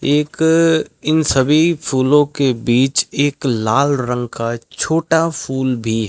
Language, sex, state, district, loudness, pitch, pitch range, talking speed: Hindi, male, Rajasthan, Bikaner, -16 LUFS, 140 Hz, 125-155 Hz, 140 wpm